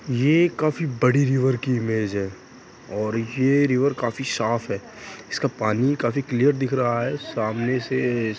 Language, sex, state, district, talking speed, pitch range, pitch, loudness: Hindi, male, Bihar, Purnia, 165 wpm, 115-135 Hz, 125 Hz, -23 LUFS